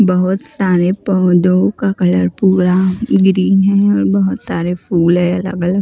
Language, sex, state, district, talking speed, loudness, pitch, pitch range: Hindi, female, Maharashtra, Mumbai Suburban, 145 wpm, -13 LUFS, 185 Hz, 175-195 Hz